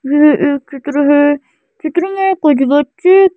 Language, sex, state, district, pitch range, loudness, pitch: Hindi, female, Madhya Pradesh, Bhopal, 290-360 Hz, -12 LUFS, 295 Hz